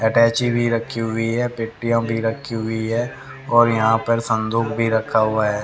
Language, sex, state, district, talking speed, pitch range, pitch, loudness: Hindi, male, Haryana, Rohtak, 190 wpm, 110-115 Hz, 115 Hz, -20 LUFS